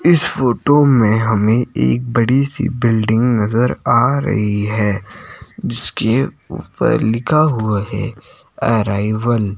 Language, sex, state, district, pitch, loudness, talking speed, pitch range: Hindi, male, Himachal Pradesh, Shimla, 115 Hz, -16 LUFS, 120 wpm, 105-125 Hz